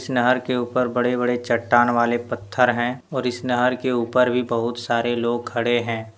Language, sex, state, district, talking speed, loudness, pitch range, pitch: Hindi, male, Jharkhand, Deoghar, 215 wpm, -21 LUFS, 120-125 Hz, 120 Hz